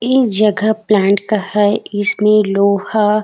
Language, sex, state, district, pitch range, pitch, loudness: Hindi, female, Chhattisgarh, Raigarh, 205-215 Hz, 210 Hz, -14 LUFS